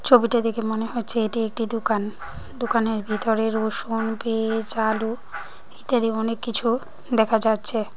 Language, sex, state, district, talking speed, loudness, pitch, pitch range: Bengali, female, Tripura, Dhalai, 130 wpm, -23 LUFS, 225 Hz, 220-230 Hz